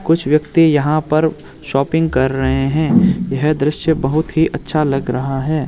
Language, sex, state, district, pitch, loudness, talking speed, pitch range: Hindi, male, Arunachal Pradesh, Lower Dibang Valley, 155 Hz, -16 LUFS, 170 wpm, 135-160 Hz